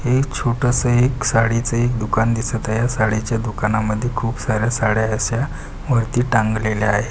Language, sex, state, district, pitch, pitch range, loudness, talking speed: Marathi, male, Maharashtra, Pune, 115 Hz, 110-125 Hz, -19 LUFS, 150 wpm